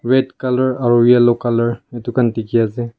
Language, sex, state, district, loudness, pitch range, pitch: Nagamese, male, Nagaland, Kohima, -16 LUFS, 120-125 Hz, 120 Hz